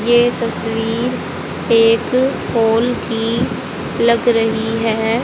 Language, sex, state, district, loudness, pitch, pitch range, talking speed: Hindi, female, Haryana, Rohtak, -16 LUFS, 230 Hz, 225-240 Hz, 90 wpm